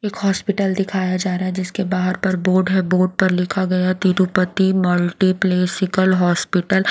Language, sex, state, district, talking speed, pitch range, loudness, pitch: Hindi, female, Haryana, Rohtak, 165 wpm, 185-190 Hz, -18 LUFS, 185 Hz